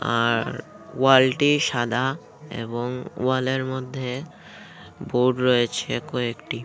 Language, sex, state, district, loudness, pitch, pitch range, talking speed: Bengali, male, Tripura, Unakoti, -23 LUFS, 130 Hz, 125-145 Hz, 100 wpm